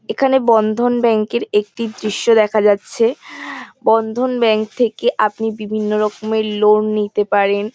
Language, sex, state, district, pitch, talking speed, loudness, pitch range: Bengali, female, West Bengal, North 24 Parganas, 215 Hz, 130 wpm, -16 LUFS, 210-230 Hz